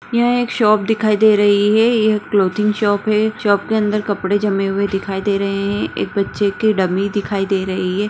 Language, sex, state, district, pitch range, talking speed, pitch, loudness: Hindi, female, Bihar, Jahanabad, 200-215 Hz, 215 wpm, 205 Hz, -16 LUFS